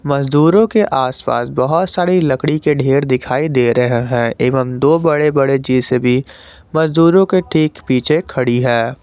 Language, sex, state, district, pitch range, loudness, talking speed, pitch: Hindi, male, Jharkhand, Garhwa, 125-160 Hz, -14 LUFS, 160 wpm, 140 Hz